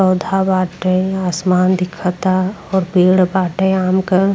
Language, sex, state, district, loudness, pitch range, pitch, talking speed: Bhojpuri, female, Uttar Pradesh, Ghazipur, -16 LUFS, 180-190 Hz, 185 Hz, 125 wpm